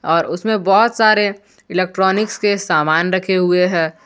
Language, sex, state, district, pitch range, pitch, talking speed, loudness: Hindi, male, Jharkhand, Garhwa, 175-205 Hz, 190 Hz, 150 wpm, -15 LUFS